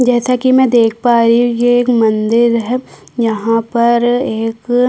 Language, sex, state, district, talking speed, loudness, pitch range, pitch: Hindi, female, Chhattisgarh, Kabirdham, 170 wpm, -13 LUFS, 230-245 Hz, 235 Hz